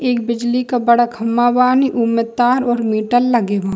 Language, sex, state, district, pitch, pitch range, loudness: Bhojpuri, female, Bihar, East Champaran, 240 Hz, 230-245 Hz, -15 LUFS